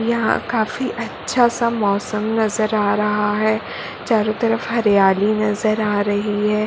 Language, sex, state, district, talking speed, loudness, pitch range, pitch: Hindi, female, Uttar Pradesh, Muzaffarnagar, 145 wpm, -19 LUFS, 210-225 Hz, 215 Hz